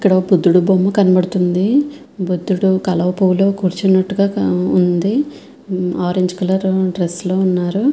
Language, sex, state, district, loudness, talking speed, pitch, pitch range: Telugu, female, Andhra Pradesh, Visakhapatnam, -16 LUFS, 145 wpm, 185 Hz, 180-195 Hz